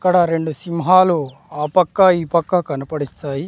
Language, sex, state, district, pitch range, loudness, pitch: Telugu, male, Andhra Pradesh, Sri Satya Sai, 150-180 Hz, -17 LUFS, 165 Hz